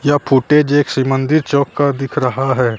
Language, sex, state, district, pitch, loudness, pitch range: Hindi, male, Bihar, Katihar, 140 Hz, -15 LUFS, 130-145 Hz